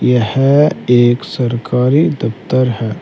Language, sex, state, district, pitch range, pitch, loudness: Hindi, male, Uttar Pradesh, Saharanpur, 120-135 Hz, 125 Hz, -13 LUFS